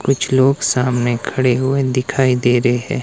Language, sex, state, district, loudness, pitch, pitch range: Hindi, male, Himachal Pradesh, Shimla, -16 LUFS, 130 Hz, 125-135 Hz